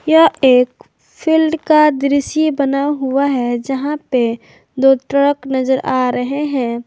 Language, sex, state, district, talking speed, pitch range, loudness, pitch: Hindi, female, Jharkhand, Garhwa, 140 wpm, 260-295 Hz, -15 LUFS, 275 Hz